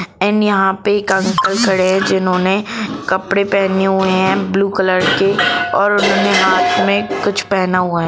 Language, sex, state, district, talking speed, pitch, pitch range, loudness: Hindi, female, Jharkhand, Jamtara, 170 wpm, 190 Hz, 185-200 Hz, -14 LUFS